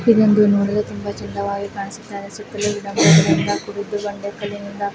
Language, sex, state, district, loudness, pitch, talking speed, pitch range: Kannada, female, Karnataka, Dakshina Kannada, -19 LUFS, 205 Hz, 160 wpm, 200-210 Hz